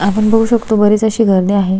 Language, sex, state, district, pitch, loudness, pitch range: Marathi, female, Maharashtra, Solapur, 215 Hz, -12 LUFS, 195-220 Hz